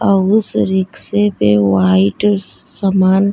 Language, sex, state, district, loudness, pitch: Hindi, female, Bihar, Vaishali, -14 LUFS, 190 Hz